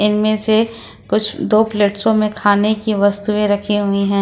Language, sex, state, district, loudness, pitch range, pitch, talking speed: Hindi, female, Jharkhand, Ranchi, -16 LUFS, 205-215 Hz, 210 Hz, 170 wpm